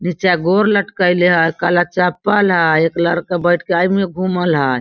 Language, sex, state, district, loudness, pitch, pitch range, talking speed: Hindi, female, Bihar, Sitamarhi, -15 LUFS, 175 Hz, 170-185 Hz, 175 wpm